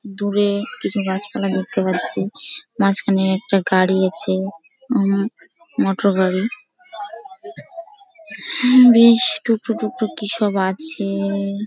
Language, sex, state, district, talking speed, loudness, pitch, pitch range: Bengali, female, West Bengal, Jhargram, 95 wpm, -18 LUFS, 205 Hz, 195-255 Hz